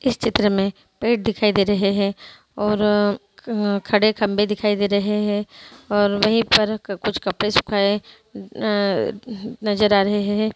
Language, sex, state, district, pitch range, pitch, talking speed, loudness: Hindi, female, Andhra Pradesh, Anantapur, 205-215 Hz, 210 Hz, 140 wpm, -20 LUFS